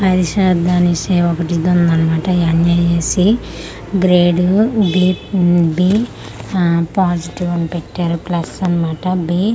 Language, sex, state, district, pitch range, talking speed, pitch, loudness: Telugu, female, Andhra Pradesh, Manyam, 170-185 Hz, 105 wpm, 175 Hz, -15 LUFS